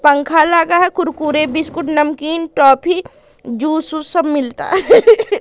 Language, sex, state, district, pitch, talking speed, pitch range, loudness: Hindi, female, Madhya Pradesh, Katni, 315 Hz, 135 wpm, 300-355 Hz, -13 LUFS